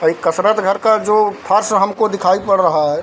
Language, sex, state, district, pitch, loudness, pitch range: Hindi, male, Bihar, Darbhanga, 200 Hz, -15 LUFS, 180-210 Hz